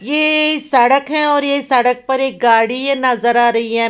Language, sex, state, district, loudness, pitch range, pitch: Hindi, female, Bihar, Patna, -14 LUFS, 240-285 Hz, 265 Hz